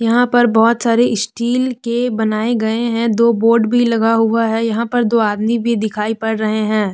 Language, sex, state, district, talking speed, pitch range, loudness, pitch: Hindi, female, Jharkhand, Deoghar, 205 wpm, 220-235 Hz, -15 LUFS, 230 Hz